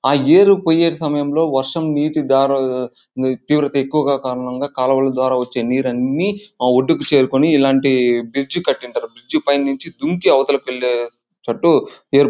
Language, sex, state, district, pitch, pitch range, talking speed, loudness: Telugu, male, Andhra Pradesh, Anantapur, 135 Hz, 130-155 Hz, 165 wpm, -17 LUFS